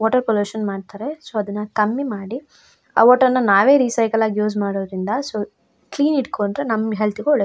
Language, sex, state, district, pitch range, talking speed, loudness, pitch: Kannada, female, Karnataka, Shimoga, 205-255 Hz, 185 wpm, -19 LUFS, 220 Hz